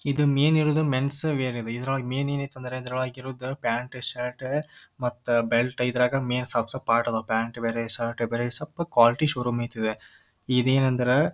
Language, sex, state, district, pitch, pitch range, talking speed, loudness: Kannada, male, Karnataka, Dharwad, 125 Hz, 120-135 Hz, 165 wpm, -26 LUFS